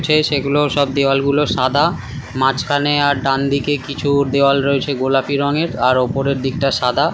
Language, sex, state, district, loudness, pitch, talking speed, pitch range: Bengali, male, West Bengal, Kolkata, -16 LUFS, 140 Hz, 160 wpm, 135-145 Hz